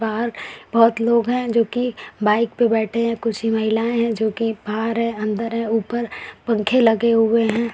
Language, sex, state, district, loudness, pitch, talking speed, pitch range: Hindi, female, Uttar Pradesh, Varanasi, -20 LUFS, 230 Hz, 185 wpm, 220-235 Hz